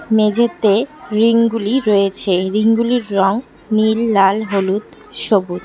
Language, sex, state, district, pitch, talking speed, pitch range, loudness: Bengali, female, West Bengal, Cooch Behar, 215 Hz, 105 wpm, 195-230 Hz, -16 LUFS